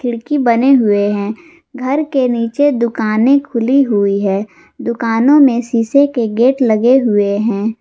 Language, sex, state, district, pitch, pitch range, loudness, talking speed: Hindi, female, Jharkhand, Garhwa, 235 Hz, 220-270 Hz, -13 LUFS, 145 wpm